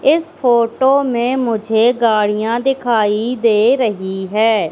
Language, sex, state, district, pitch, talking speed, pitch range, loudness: Hindi, female, Madhya Pradesh, Katni, 230 Hz, 115 wpm, 215-255 Hz, -15 LUFS